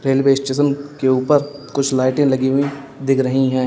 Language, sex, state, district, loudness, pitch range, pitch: Hindi, male, Uttar Pradesh, Lalitpur, -17 LUFS, 130-140 Hz, 135 Hz